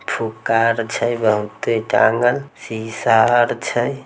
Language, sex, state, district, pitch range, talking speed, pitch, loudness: Maithili, male, Bihar, Samastipur, 110-120 Hz, 120 wpm, 115 Hz, -18 LUFS